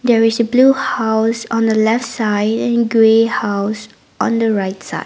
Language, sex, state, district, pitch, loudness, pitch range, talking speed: English, female, Nagaland, Dimapur, 225 Hz, -15 LUFS, 220-235 Hz, 190 wpm